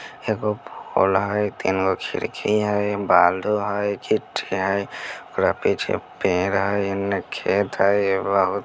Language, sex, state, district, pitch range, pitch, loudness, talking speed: Bajjika, male, Bihar, Vaishali, 95-105 Hz, 100 Hz, -22 LUFS, 125 wpm